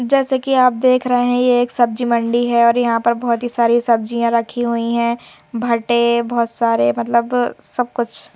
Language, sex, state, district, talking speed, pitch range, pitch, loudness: Hindi, female, Madhya Pradesh, Bhopal, 195 wpm, 235-245 Hz, 235 Hz, -16 LUFS